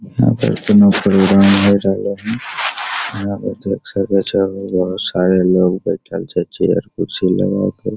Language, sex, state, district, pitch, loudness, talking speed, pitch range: Maithili, male, Bihar, Begusarai, 100 Hz, -15 LUFS, 160 wpm, 95-100 Hz